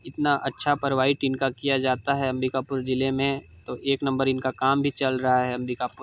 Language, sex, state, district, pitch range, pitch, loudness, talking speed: Hindi, male, Chhattisgarh, Sarguja, 130-140 Hz, 135 Hz, -25 LUFS, 200 wpm